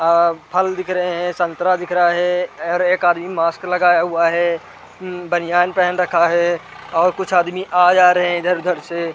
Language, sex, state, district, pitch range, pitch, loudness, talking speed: Hindi, male, Chhattisgarh, Rajnandgaon, 170-180 Hz, 175 Hz, -17 LUFS, 190 wpm